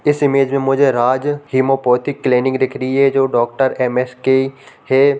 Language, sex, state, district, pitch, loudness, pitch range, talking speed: Hindi, male, Bihar, Samastipur, 135 Hz, -16 LUFS, 130-140 Hz, 160 wpm